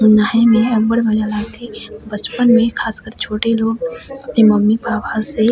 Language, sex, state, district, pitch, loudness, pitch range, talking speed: Chhattisgarhi, female, Chhattisgarh, Sarguja, 225 Hz, -15 LUFS, 215-235 Hz, 150 wpm